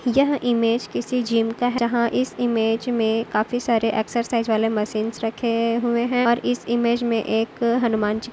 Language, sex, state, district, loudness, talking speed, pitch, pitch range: Hindi, female, Maharashtra, Dhule, -22 LUFS, 175 wpm, 235 Hz, 225-240 Hz